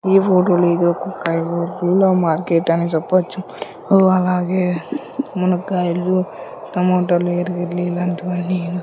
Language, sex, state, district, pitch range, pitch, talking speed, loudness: Telugu, male, Andhra Pradesh, Sri Satya Sai, 175-185 Hz, 180 Hz, 80 wpm, -18 LUFS